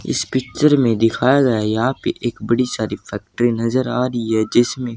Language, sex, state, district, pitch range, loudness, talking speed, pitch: Hindi, male, Haryana, Jhajjar, 115-125 Hz, -18 LUFS, 205 wpm, 120 Hz